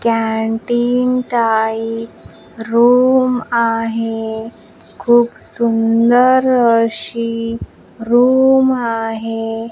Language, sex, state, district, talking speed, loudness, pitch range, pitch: Marathi, female, Maharashtra, Washim, 55 wpm, -15 LUFS, 225-245 Hz, 230 Hz